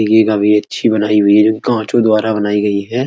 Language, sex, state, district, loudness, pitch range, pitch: Hindi, male, Uttar Pradesh, Etah, -13 LUFS, 105-110 Hz, 110 Hz